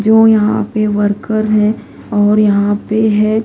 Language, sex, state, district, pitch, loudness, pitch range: Hindi, female, Delhi, New Delhi, 215 Hz, -13 LUFS, 210-220 Hz